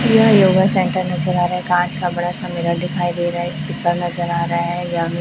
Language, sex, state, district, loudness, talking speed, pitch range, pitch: Hindi, male, Chhattisgarh, Raipur, -18 LUFS, 275 wpm, 175-180 Hz, 175 Hz